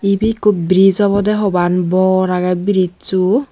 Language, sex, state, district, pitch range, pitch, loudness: Chakma, female, Tripura, Dhalai, 180-205 Hz, 190 Hz, -14 LUFS